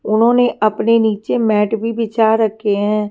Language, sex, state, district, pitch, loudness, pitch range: Hindi, female, Himachal Pradesh, Shimla, 220 Hz, -15 LUFS, 210-230 Hz